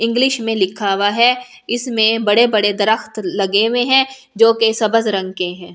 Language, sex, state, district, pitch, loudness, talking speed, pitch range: Hindi, female, Delhi, New Delhi, 225 Hz, -15 LUFS, 175 wpm, 205-240 Hz